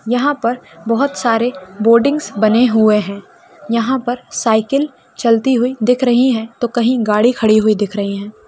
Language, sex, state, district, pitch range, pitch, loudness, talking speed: Hindi, female, Uttarakhand, Uttarkashi, 215-255 Hz, 235 Hz, -15 LUFS, 170 wpm